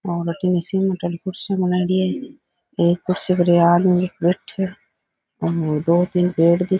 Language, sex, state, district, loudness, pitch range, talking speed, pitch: Rajasthani, male, Rajasthan, Nagaur, -19 LUFS, 170-185 Hz, 185 wpm, 180 Hz